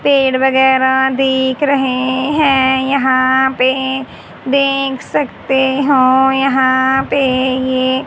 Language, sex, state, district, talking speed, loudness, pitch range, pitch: Hindi, female, Haryana, Charkhi Dadri, 95 wpm, -13 LUFS, 260-270 Hz, 265 Hz